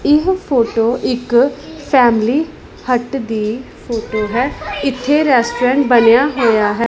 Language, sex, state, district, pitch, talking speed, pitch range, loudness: Punjabi, female, Punjab, Pathankot, 245 Hz, 115 wpm, 230-275 Hz, -15 LUFS